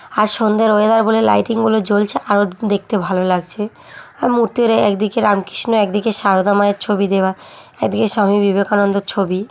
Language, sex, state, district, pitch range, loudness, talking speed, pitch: Bengali, female, West Bengal, Jhargram, 200-220 Hz, -15 LUFS, 150 wpm, 205 Hz